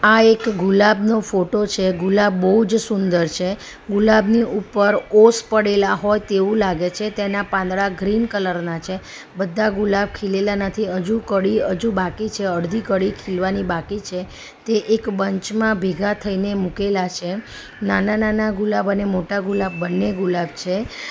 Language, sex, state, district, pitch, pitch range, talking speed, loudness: Gujarati, female, Gujarat, Valsad, 200 Hz, 190-215 Hz, 155 wpm, -19 LUFS